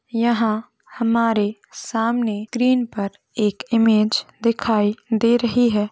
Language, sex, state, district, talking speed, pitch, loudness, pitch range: Hindi, female, Maharashtra, Nagpur, 110 wpm, 225 Hz, -20 LUFS, 215-235 Hz